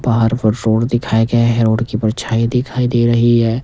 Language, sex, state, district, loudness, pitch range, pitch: Hindi, male, Himachal Pradesh, Shimla, -15 LUFS, 115-120 Hz, 115 Hz